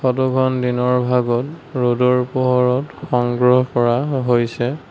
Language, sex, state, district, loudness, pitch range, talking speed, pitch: Assamese, male, Assam, Sonitpur, -18 LUFS, 125-130 Hz, 110 wpm, 125 Hz